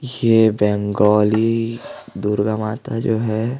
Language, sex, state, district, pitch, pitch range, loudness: Hindi, male, Chhattisgarh, Jashpur, 110 Hz, 105-115 Hz, -18 LUFS